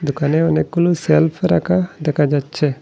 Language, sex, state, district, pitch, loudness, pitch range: Bengali, male, Assam, Hailakandi, 150 Hz, -17 LUFS, 145-160 Hz